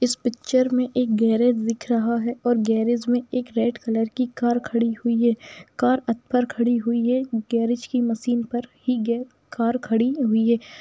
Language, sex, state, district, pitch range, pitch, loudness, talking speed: Hindi, female, Bihar, Jamui, 230-245 Hz, 240 Hz, -22 LUFS, 190 wpm